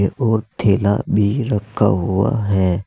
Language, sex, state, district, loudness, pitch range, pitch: Hindi, male, Uttar Pradesh, Saharanpur, -18 LUFS, 100-110 Hz, 105 Hz